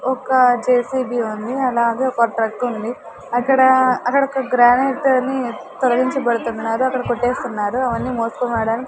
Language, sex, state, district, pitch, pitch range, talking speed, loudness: Telugu, female, Andhra Pradesh, Sri Satya Sai, 245 Hz, 235-260 Hz, 110 wpm, -18 LUFS